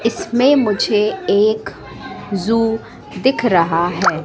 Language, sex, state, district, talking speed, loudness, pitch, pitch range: Hindi, female, Madhya Pradesh, Katni, 100 wpm, -16 LUFS, 210 Hz, 185-230 Hz